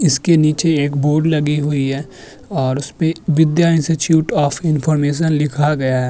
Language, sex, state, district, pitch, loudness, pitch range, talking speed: Hindi, male, Maharashtra, Chandrapur, 150 Hz, -16 LUFS, 145-160 Hz, 155 wpm